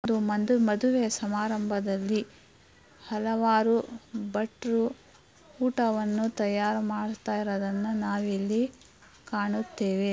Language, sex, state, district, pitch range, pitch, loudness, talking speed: Kannada, female, Karnataka, Belgaum, 210-230 Hz, 215 Hz, -28 LUFS, 70 wpm